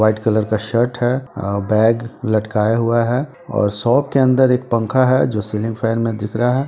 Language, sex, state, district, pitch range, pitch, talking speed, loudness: Hindi, male, Bihar, Sitamarhi, 110-125 Hz, 115 Hz, 215 wpm, -17 LUFS